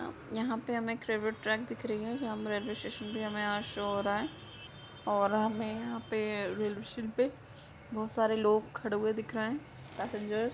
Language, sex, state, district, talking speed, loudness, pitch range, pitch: Hindi, female, Bihar, Madhepura, 190 wpm, -34 LUFS, 210-225 Hz, 220 Hz